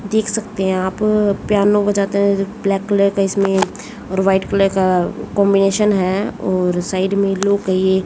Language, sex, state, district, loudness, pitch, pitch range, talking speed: Hindi, female, Haryana, Jhajjar, -17 LUFS, 195 Hz, 190-200 Hz, 170 wpm